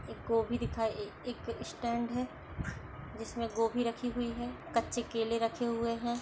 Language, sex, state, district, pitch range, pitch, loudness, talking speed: Hindi, female, Chhattisgarh, Sarguja, 230-240 Hz, 235 Hz, -35 LUFS, 155 wpm